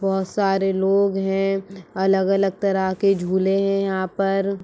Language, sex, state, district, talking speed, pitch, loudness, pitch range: Hindi, female, Uttar Pradesh, Etah, 140 wpm, 195 Hz, -21 LUFS, 190-195 Hz